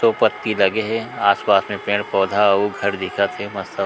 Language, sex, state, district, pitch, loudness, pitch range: Chhattisgarhi, male, Chhattisgarh, Sukma, 100 Hz, -19 LUFS, 100-110 Hz